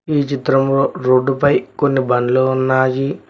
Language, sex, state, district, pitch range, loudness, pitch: Telugu, male, Telangana, Mahabubabad, 130-140 Hz, -16 LUFS, 135 Hz